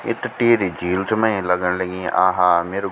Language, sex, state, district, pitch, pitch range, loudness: Garhwali, male, Uttarakhand, Tehri Garhwal, 95 Hz, 90-100 Hz, -19 LUFS